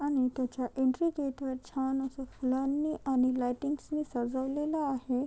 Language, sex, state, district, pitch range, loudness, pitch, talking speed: Marathi, female, Maharashtra, Chandrapur, 255-285 Hz, -32 LUFS, 265 Hz, 150 wpm